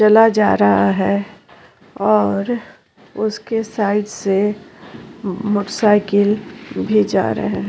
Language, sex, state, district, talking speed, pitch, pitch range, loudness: Hindi, female, Uttarakhand, Tehri Garhwal, 110 wpm, 205 Hz, 195-215 Hz, -17 LUFS